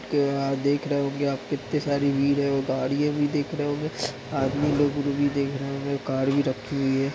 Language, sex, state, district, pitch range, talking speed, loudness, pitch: Hindi, male, Chhattisgarh, Raigarh, 135-145 Hz, 150 wpm, -25 LUFS, 140 Hz